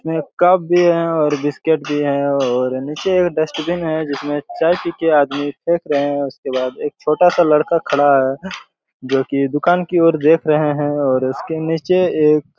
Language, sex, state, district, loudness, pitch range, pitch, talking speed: Hindi, male, Chhattisgarh, Raigarh, -16 LUFS, 145-170 Hz, 150 Hz, 185 wpm